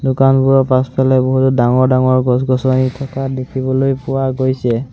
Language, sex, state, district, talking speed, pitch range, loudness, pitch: Assamese, male, Assam, Sonitpur, 120 wpm, 130-135 Hz, -14 LUFS, 130 Hz